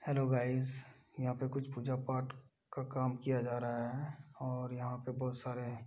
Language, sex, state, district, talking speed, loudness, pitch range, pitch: Hindi, male, Uttar Pradesh, Budaun, 195 wpm, -39 LUFS, 125-130 Hz, 130 Hz